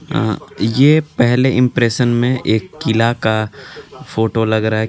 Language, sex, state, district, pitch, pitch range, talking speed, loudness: Hindi, male, Jharkhand, Garhwa, 120 Hz, 110-130 Hz, 125 wpm, -15 LUFS